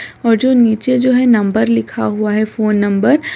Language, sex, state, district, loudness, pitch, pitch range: Hindi, female, Bihar, Gopalganj, -13 LUFS, 220 Hz, 210-255 Hz